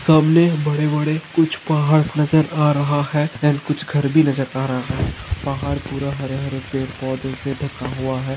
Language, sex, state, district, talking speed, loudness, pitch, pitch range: Hindi, male, Maharashtra, Pune, 195 wpm, -20 LUFS, 145 Hz, 135-150 Hz